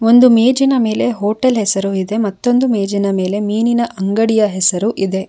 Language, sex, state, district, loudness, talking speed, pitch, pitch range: Kannada, female, Karnataka, Bangalore, -14 LUFS, 145 wpm, 215 Hz, 195-235 Hz